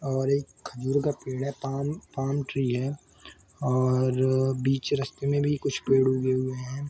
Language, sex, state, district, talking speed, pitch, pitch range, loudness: Hindi, male, Jharkhand, Sahebganj, 165 wpm, 135 Hz, 130-140 Hz, -27 LUFS